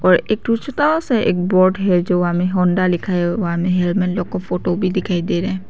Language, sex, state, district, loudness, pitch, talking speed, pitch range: Hindi, female, Arunachal Pradesh, Papum Pare, -17 LUFS, 185 Hz, 265 wpm, 180-195 Hz